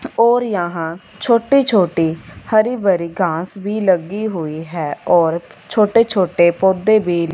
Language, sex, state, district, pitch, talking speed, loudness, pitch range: Hindi, female, Punjab, Fazilka, 190 Hz, 130 wpm, -16 LUFS, 170-215 Hz